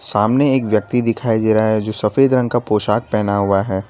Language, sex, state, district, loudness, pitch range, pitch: Hindi, male, Gujarat, Valsad, -16 LUFS, 105-120 Hz, 110 Hz